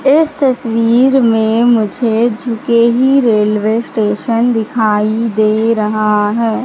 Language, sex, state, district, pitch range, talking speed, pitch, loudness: Hindi, female, Madhya Pradesh, Katni, 215-240 Hz, 110 wpm, 230 Hz, -12 LUFS